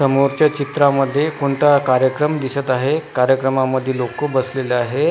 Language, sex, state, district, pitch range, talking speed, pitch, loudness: Marathi, male, Maharashtra, Washim, 130-145 Hz, 115 wpm, 135 Hz, -17 LUFS